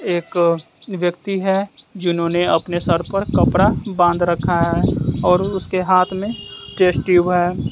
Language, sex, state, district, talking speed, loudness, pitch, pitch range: Hindi, male, Bihar, West Champaran, 140 wpm, -18 LUFS, 175 Hz, 170-190 Hz